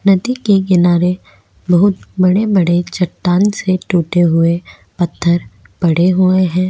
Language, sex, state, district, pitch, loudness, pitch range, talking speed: Hindi, female, Maharashtra, Aurangabad, 180 Hz, -14 LUFS, 175-190 Hz, 125 wpm